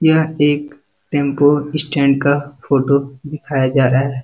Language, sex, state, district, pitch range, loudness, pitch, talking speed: Hindi, male, Bihar, Jamui, 135-145 Hz, -16 LUFS, 145 Hz, 140 wpm